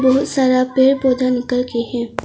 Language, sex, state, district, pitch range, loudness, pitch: Hindi, female, Arunachal Pradesh, Longding, 250-260 Hz, -16 LUFS, 255 Hz